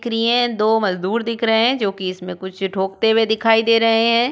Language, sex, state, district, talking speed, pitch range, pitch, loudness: Hindi, female, Uttar Pradesh, Budaun, 250 wpm, 195-230 Hz, 225 Hz, -18 LUFS